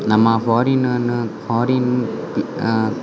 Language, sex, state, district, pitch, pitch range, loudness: Tulu, male, Karnataka, Dakshina Kannada, 115 Hz, 115-125 Hz, -18 LUFS